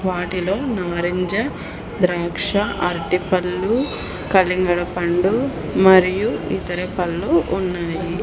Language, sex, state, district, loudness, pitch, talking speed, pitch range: Telugu, female, Telangana, Hyderabad, -19 LUFS, 180 Hz, 65 wpm, 175-195 Hz